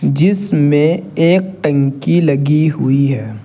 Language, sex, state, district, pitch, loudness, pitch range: Hindi, male, Uttar Pradesh, Saharanpur, 150 Hz, -14 LUFS, 140-170 Hz